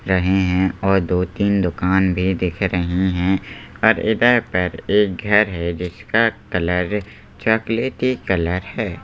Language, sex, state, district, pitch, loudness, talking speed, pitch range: Hindi, male, Madhya Pradesh, Bhopal, 95 Hz, -19 LUFS, 135 wpm, 90-105 Hz